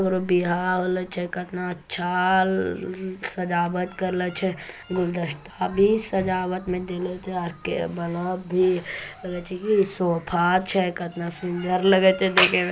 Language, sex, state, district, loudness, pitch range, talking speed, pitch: Hindi, female, Bihar, Begusarai, -24 LUFS, 175-185 Hz, 135 wpm, 180 Hz